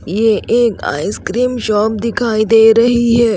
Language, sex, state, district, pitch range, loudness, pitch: Hindi, female, Haryana, Rohtak, 220-235 Hz, -13 LUFS, 225 Hz